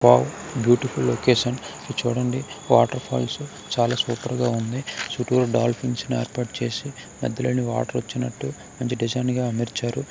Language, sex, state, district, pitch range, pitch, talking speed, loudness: Telugu, male, Karnataka, Gulbarga, 120-125 Hz, 125 Hz, 130 wpm, -24 LUFS